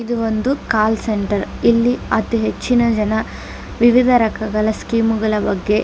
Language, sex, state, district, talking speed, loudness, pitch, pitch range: Kannada, female, Karnataka, Dakshina Kannada, 145 wpm, -17 LUFS, 220 Hz, 215-235 Hz